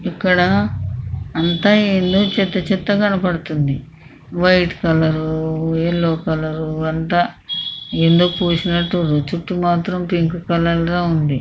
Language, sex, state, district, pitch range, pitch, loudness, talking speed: Telugu, female, Andhra Pradesh, Krishna, 160-180 Hz, 170 Hz, -17 LUFS, 105 wpm